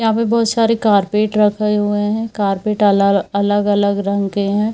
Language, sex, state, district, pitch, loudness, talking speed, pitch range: Hindi, female, Jharkhand, Jamtara, 205 Hz, -16 LUFS, 175 wpm, 200-215 Hz